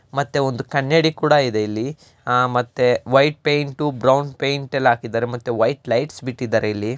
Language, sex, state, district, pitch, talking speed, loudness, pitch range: Kannada, male, Karnataka, Mysore, 130 Hz, 50 wpm, -19 LUFS, 120-140 Hz